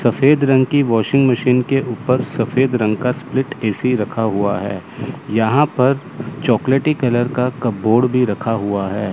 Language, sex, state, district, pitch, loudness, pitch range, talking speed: Hindi, male, Chandigarh, Chandigarh, 125 Hz, -17 LUFS, 110-135 Hz, 165 wpm